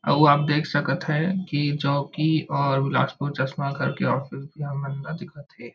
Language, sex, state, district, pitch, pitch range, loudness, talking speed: Chhattisgarhi, male, Chhattisgarh, Bilaspur, 145 Hz, 140-150 Hz, -24 LUFS, 190 wpm